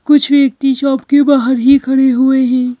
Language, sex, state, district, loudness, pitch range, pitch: Hindi, female, Madhya Pradesh, Bhopal, -11 LUFS, 260-280 Hz, 265 Hz